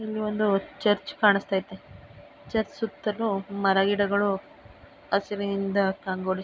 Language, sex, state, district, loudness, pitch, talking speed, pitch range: Kannada, female, Karnataka, Mysore, -26 LUFS, 200 Hz, 95 wpm, 195-215 Hz